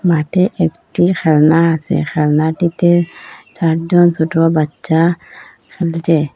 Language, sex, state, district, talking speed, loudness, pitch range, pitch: Bengali, female, Assam, Hailakandi, 85 wpm, -14 LUFS, 160-175 Hz, 165 Hz